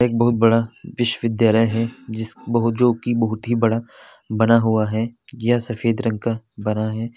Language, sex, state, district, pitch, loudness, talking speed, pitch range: Hindi, male, Uttar Pradesh, Varanasi, 115 Hz, -20 LUFS, 160 wpm, 110-120 Hz